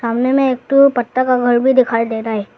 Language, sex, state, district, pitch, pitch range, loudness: Hindi, male, Arunachal Pradesh, Lower Dibang Valley, 245 Hz, 230-260 Hz, -14 LUFS